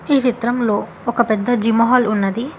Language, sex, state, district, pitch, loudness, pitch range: Telugu, female, Telangana, Hyderabad, 235 Hz, -17 LUFS, 220-245 Hz